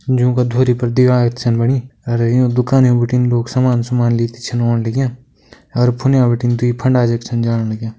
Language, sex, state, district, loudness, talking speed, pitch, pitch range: Kumaoni, male, Uttarakhand, Uttarkashi, -15 LUFS, 180 wpm, 120 Hz, 120-125 Hz